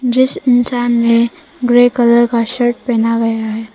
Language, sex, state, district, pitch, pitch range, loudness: Hindi, female, Arunachal Pradesh, Papum Pare, 240 Hz, 230-245 Hz, -13 LUFS